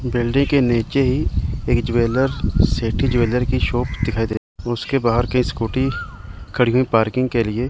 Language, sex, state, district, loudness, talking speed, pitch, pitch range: Hindi, male, Chandigarh, Chandigarh, -19 LUFS, 165 wpm, 120 Hz, 115-130 Hz